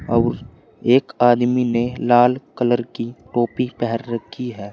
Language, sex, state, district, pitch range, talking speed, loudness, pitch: Hindi, male, Uttar Pradesh, Saharanpur, 120-125 Hz, 140 wpm, -19 LUFS, 120 Hz